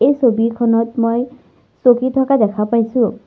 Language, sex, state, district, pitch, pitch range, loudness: Assamese, female, Assam, Sonitpur, 235 Hz, 230-255 Hz, -15 LUFS